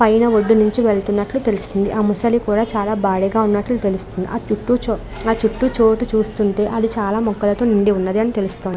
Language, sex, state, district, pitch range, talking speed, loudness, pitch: Telugu, female, Andhra Pradesh, Krishna, 205-225 Hz, 165 wpm, -18 LUFS, 215 Hz